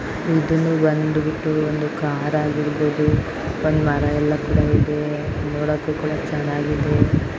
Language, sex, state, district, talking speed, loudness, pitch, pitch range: Kannada, female, Karnataka, Mysore, 95 wpm, -20 LUFS, 150 Hz, 145-155 Hz